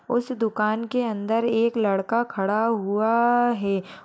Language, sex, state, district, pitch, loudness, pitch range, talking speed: Hindi, female, Uttar Pradesh, Deoria, 225 Hz, -23 LUFS, 205-235 Hz, 150 wpm